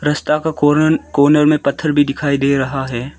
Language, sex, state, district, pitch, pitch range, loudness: Hindi, male, Arunachal Pradesh, Lower Dibang Valley, 145 Hz, 140-150 Hz, -15 LUFS